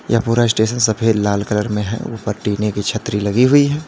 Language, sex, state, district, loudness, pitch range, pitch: Hindi, male, Uttar Pradesh, Lalitpur, -17 LUFS, 105-115 Hz, 110 Hz